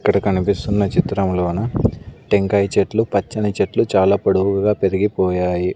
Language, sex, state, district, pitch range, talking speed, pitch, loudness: Telugu, male, Andhra Pradesh, Sri Satya Sai, 95-105 Hz, 105 wpm, 100 Hz, -18 LUFS